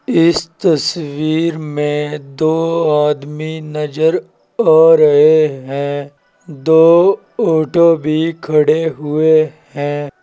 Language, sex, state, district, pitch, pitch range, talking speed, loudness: Hindi, male, Uttar Pradesh, Saharanpur, 155 Hz, 150-165 Hz, 90 wpm, -14 LUFS